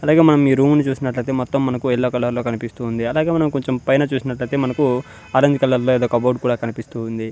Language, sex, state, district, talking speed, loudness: Telugu, male, Andhra Pradesh, Sri Satya Sai, 230 wpm, -18 LUFS